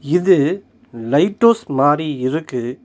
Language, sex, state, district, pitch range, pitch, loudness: Tamil, male, Tamil Nadu, Nilgiris, 130-185 Hz, 145 Hz, -16 LUFS